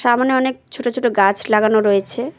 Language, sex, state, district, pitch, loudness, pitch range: Bengali, female, West Bengal, Cooch Behar, 240 Hz, -17 LUFS, 215-255 Hz